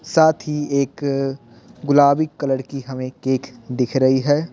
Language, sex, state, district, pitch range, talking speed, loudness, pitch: Hindi, male, Bihar, Patna, 130-150 Hz, 160 wpm, -19 LUFS, 140 Hz